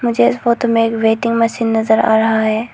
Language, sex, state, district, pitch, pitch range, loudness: Hindi, female, Arunachal Pradesh, Lower Dibang Valley, 225 Hz, 220-230 Hz, -14 LUFS